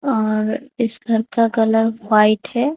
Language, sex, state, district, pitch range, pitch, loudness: Hindi, female, Odisha, Khordha, 215-240 Hz, 225 Hz, -18 LUFS